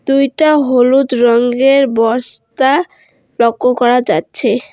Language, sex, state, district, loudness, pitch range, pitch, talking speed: Bengali, female, West Bengal, Alipurduar, -12 LUFS, 235-275 Hz, 250 Hz, 90 wpm